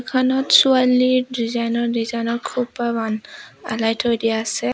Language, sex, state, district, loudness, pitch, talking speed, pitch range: Assamese, female, Assam, Sonitpur, -19 LUFS, 235 Hz, 150 wpm, 225-255 Hz